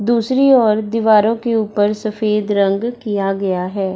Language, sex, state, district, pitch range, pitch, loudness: Hindi, female, Bihar, Darbhanga, 200-230 Hz, 215 Hz, -16 LUFS